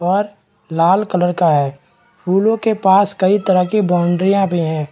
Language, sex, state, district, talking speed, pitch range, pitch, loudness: Hindi, male, Chhattisgarh, Raigarh, 170 wpm, 175-205 Hz, 190 Hz, -15 LUFS